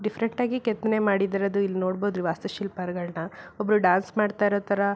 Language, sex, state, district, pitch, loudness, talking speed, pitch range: Kannada, female, Karnataka, Belgaum, 200 Hz, -26 LUFS, 170 wpm, 185-210 Hz